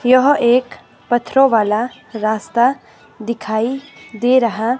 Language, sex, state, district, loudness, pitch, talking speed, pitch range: Hindi, female, Himachal Pradesh, Shimla, -16 LUFS, 240 Hz, 100 wpm, 220-255 Hz